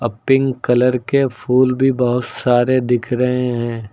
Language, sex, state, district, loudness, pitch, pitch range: Hindi, male, Uttar Pradesh, Lucknow, -16 LUFS, 125 Hz, 120-130 Hz